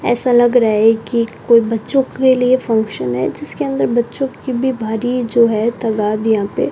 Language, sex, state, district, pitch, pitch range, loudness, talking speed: Hindi, male, Rajasthan, Bikaner, 230 Hz, 220-245 Hz, -15 LUFS, 205 wpm